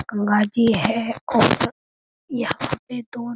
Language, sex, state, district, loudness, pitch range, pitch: Hindi, female, Uttar Pradesh, Budaun, -21 LUFS, 210-240 Hz, 230 Hz